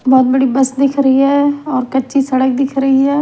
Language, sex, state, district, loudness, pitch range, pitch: Hindi, female, Himachal Pradesh, Shimla, -13 LUFS, 260-275 Hz, 270 Hz